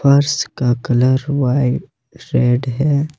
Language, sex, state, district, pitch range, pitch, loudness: Hindi, male, Jharkhand, Ranchi, 125-145 Hz, 130 Hz, -17 LUFS